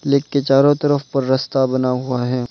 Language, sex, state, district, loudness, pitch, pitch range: Hindi, male, Arunachal Pradesh, Lower Dibang Valley, -17 LUFS, 135 Hz, 130-140 Hz